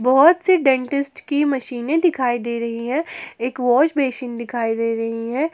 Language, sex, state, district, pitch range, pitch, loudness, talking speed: Hindi, female, Jharkhand, Garhwa, 235-290 Hz, 255 Hz, -20 LUFS, 175 wpm